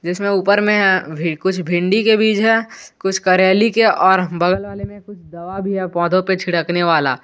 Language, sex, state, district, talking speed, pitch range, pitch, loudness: Hindi, male, Jharkhand, Garhwa, 190 wpm, 175-200 Hz, 190 Hz, -16 LUFS